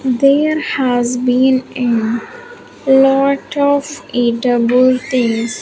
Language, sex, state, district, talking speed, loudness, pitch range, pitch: English, female, Andhra Pradesh, Sri Satya Sai, 85 wpm, -14 LUFS, 245-280 Hz, 255 Hz